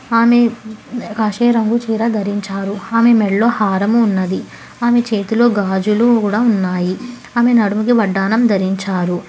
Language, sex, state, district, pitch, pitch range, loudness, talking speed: Telugu, female, Telangana, Hyderabad, 220 Hz, 200-235 Hz, -15 LUFS, 115 wpm